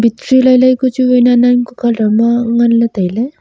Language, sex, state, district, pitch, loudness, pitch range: Wancho, female, Arunachal Pradesh, Longding, 240 Hz, -11 LUFS, 230-255 Hz